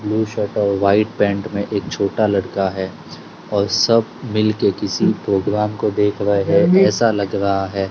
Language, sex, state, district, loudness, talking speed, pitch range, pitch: Hindi, male, Gujarat, Gandhinagar, -18 LUFS, 165 wpm, 100-110 Hz, 100 Hz